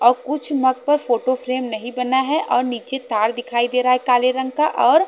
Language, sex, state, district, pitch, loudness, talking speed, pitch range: Hindi, female, Haryana, Charkhi Dadri, 255 Hz, -19 LUFS, 225 wpm, 245-265 Hz